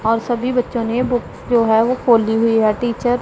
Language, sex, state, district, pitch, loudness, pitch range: Hindi, female, Punjab, Pathankot, 235 Hz, -17 LUFS, 225-245 Hz